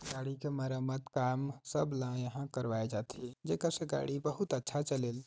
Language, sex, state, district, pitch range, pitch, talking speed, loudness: Chhattisgarhi, male, Chhattisgarh, Sarguja, 125-140 Hz, 135 Hz, 180 wpm, -37 LUFS